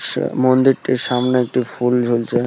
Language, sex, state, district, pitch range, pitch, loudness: Bengali, male, West Bengal, Purulia, 120-130 Hz, 125 Hz, -17 LUFS